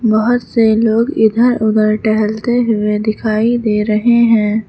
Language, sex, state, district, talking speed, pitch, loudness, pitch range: Hindi, female, Uttar Pradesh, Lucknow, 140 wpm, 220 Hz, -13 LUFS, 215-235 Hz